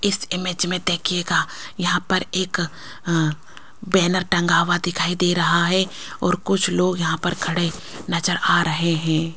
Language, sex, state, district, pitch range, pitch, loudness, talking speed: Hindi, female, Rajasthan, Jaipur, 170-180 Hz, 175 Hz, -21 LUFS, 155 wpm